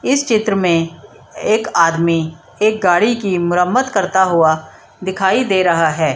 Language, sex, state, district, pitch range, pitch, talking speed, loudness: Hindi, female, Bihar, Samastipur, 165-215 Hz, 185 Hz, 145 wpm, -15 LUFS